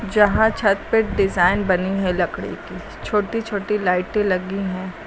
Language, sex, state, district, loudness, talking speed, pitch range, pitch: Hindi, female, Uttar Pradesh, Lucknow, -20 LUFS, 155 wpm, 185-210 Hz, 200 Hz